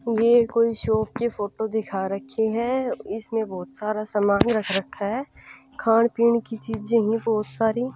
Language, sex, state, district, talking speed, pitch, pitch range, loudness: Hindi, female, Punjab, Pathankot, 175 wpm, 225 Hz, 215-235 Hz, -23 LUFS